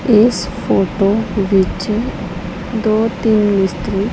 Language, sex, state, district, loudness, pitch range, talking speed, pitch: Punjabi, female, Punjab, Pathankot, -16 LUFS, 195-220 Hz, 85 wpm, 205 Hz